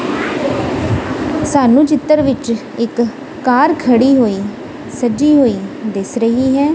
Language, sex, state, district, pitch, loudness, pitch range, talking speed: Punjabi, female, Punjab, Kapurthala, 265 Hz, -14 LUFS, 235-295 Hz, 105 wpm